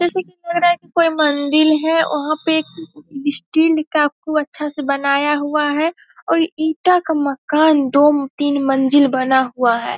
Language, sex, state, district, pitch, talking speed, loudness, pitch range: Hindi, female, Bihar, Vaishali, 300 Hz, 170 wpm, -16 LUFS, 280-320 Hz